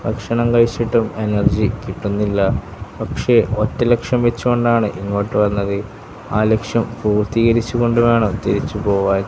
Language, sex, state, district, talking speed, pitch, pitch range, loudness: Malayalam, male, Kerala, Kasaragod, 115 wpm, 110 Hz, 100-115 Hz, -17 LUFS